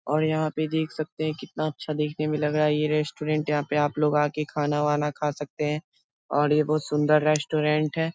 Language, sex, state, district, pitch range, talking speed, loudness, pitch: Hindi, male, Bihar, Muzaffarpur, 150-155 Hz, 235 wpm, -25 LUFS, 150 Hz